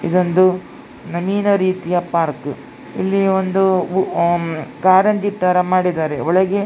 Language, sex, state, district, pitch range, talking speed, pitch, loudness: Kannada, female, Karnataka, Dakshina Kannada, 170-190 Hz, 100 wpm, 185 Hz, -17 LUFS